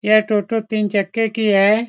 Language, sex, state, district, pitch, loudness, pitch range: Hindi, male, Bihar, Saran, 215 Hz, -18 LUFS, 210-225 Hz